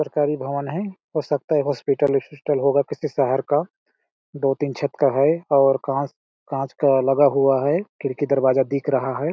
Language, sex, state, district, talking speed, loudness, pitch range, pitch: Hindi, male, Chhattisgarh, Balrampur, 180 wpm, -21 LUFS, 135-150 Hz, 140 Hz